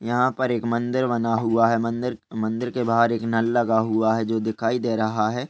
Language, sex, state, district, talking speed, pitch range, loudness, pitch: Hindi, male, Uttar Pradesh, Ghazipur, 230 wpm, 110-120 Hz, -23 LUFS, 115 Hz